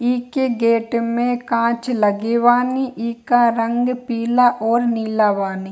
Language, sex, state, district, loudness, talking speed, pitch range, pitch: Hindi, female, Bihar, Kishanganj, -18 LUFS, 125 wpm, 230-245 Hz, 235 Hz